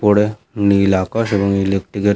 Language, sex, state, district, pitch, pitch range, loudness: Bengali, male, West Bengal, Malda, 100 Hz, 100-105 Hz, -16 LUFS